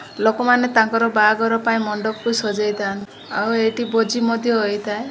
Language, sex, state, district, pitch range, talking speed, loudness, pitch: Odia, female, Odisha, Malkangiri, 210-230 Hz, 130 wpm, -19 LUFS, 225 Hz